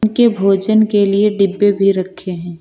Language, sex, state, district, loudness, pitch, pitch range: Hindi, male, Uttar Pradesh, Lucknow, -14 LUFS, 200 Hz, 190-210 Hz